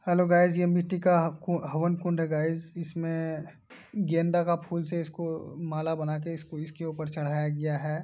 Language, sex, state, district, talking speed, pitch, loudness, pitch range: Hindi, male, Uttar Pradesh, Hamirpur, 170 wpm, 165 Hz, -29 LUFS, 155-175 Hz